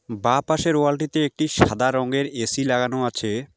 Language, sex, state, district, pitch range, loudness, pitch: Bengali, male, West Bengal, Alipurduar, 120-145 Hz, -21 LUFS, 130 Hz